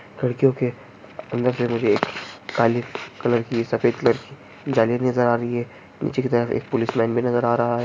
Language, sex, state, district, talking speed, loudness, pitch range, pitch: Hindi, male, Bihar, Jamui, 215 wpm, -22 LUFS, 115-125 Hz, 120 Hz